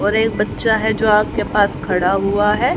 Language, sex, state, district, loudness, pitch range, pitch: Hindi, female, Haryana, Rohtak, -17 LUFS, 200-220 Hz, 210 Hz